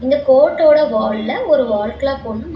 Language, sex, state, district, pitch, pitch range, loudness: Tamil, female, Tamil Nadu, Chennai, 265 Hz, 220-290 Hz, -15 LUFS